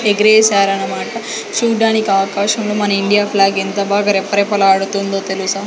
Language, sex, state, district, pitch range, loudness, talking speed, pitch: Telugu, female, Andhra Pradesh, Sri Satya Sai, 195-210 Hz, -14 LUFS, 105 wpm, 200 Hz